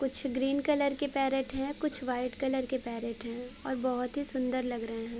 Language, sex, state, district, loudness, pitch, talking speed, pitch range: Hindi, female, Uttar Pradesh, Varanasi, -33 LUFS, 260 Hz, 220 wpm, 250-270 Hz